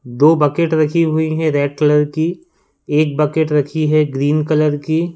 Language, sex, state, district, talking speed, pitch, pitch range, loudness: Hindi, male, Madhya Pradesh, Katni, 175 wpm, 155 Hz, 150-160 Hz, -16 LUFS